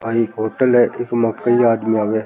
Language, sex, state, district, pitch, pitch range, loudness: Rajasthani, male, Rajasthan, Churu, 115 Hz, 110-120 Hz, -17 LUFS